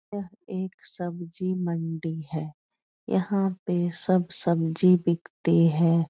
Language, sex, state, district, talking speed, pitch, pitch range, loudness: Hindi, female, Bihar, Supaul, 130 wpm, 175 Hz, 165-185 Hz, -26 LUFS